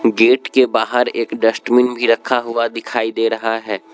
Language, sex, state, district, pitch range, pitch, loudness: Hindi, male, Arunachal Pradesh, Lower Dibang Valley, 115-125 Hz, 115 Hz, -16 LUFS